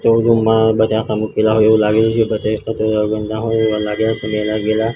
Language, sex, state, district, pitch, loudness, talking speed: Gujarati, male, Gujarat, Gandhinagar, 110 Hz, -16 LUFS, 145 wpm